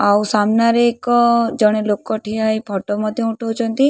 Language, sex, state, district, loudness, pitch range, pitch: Odia, female, Odisha, Khordha, -17 LUFS, 210-235 Hz, 220 Hz